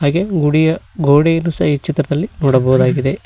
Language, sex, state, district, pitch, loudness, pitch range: Kannada, male, Karnataka, Koppal, 150 Hz, -14 LUFS, 140-165 Hz